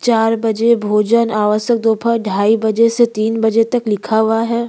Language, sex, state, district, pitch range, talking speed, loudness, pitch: Hindi, female, Chhattisgarh, Bastar, 220-230 Hz, 180 wpm, -15 LUFS, 225 Hz